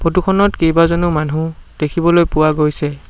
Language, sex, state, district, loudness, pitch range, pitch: Assamese, male, Assam, Sonitpur, -15 LUFS, 155-170 Hz, 165 Hz